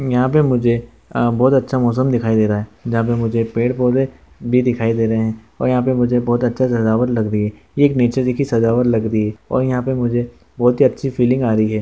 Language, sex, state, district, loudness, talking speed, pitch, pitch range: Hindi, male, Andhra Pradesh, Anantapur, -17 LUFS, 50 wpm, 120 Hz, 115-125 Hz